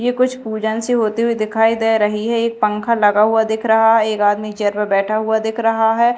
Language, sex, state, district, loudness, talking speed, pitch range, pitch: Hindi, female, Madhya Pradesh, Dhar, -16 LUFS, 255 wpm, 215-230 Hz, 220 Hz